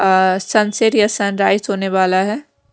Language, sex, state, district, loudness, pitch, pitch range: Hindi, female, Punjab, Kapurthala, -16 LUFS, 200 Hz, 190-215 Hz